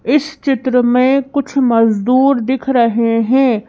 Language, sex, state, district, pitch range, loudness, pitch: Hindi, female, Madhya Pradesh, Bhopal, 235-270 Hz, -14 LUFS, 255 Hz